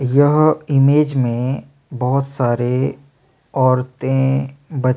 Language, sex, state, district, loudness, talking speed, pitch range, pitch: Hindi, male, Chhattisgarh, Sukma, -17 LUFS, 85 wpm, 130-140 Hz, 135 Hz